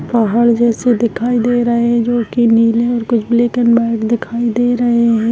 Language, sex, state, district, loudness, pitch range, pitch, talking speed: Hindi, female, Bihar, Begusarai, -14 LUFS, 230-240 Hz, 235 Hz, 205 wpm